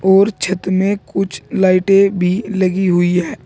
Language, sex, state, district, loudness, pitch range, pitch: Hindi, male, Uttar Pradesh, Saharanpur, -15 LUFS, 180-195 Hz, 190 Hz